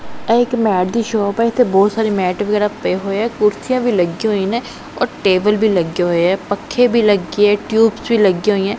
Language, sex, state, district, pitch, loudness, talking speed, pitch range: Punjabi, female, Punjab, Pathankot, 210 Hz, -16 LUFS, 225 wpm, 195-225 Hz